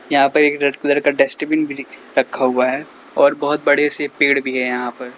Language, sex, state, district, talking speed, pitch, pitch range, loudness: Hindi, male, Uttar Pradesh, Lalitpur, 220 wpm, 140 Hz, 130-145 Hz, -17 LUFS